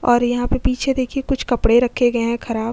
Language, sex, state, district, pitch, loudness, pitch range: Hindi, female, Uttar Pradesh, Jyotiba Phule Nagar, 245 Hz, -19 LUFS, 235-255 Hz